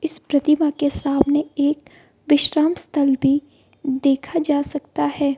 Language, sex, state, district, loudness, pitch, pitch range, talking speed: Hindi, female, Bihar, Gaya, -20 LUFS, 290 Hz, 285-300 Hz, 135 wpm